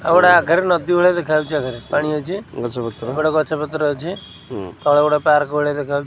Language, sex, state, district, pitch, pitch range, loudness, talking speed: Odia, male, Odisha, Khordha, 150 Hz, 145-170 Hz, -18 LUFS, 190 wpm